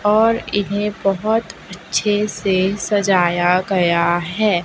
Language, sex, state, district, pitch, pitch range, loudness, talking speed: Hindi, female, Chhattisgarh, Raipur, 195 Hz, 180-210 Hz, -18 LUFS, 105 wpm